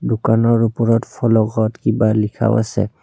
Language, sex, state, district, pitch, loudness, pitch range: Assamese, male, Assam, Kamrup Metropolitan, 115 Hz, -17 LUFS, 110-115 Hz